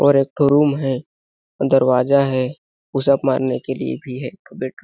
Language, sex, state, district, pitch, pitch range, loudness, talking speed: Hindi, male, Chhattisgarh, Balrampur, 135 Hz, 125-140 Hz, -19 LUFS, 210 wpm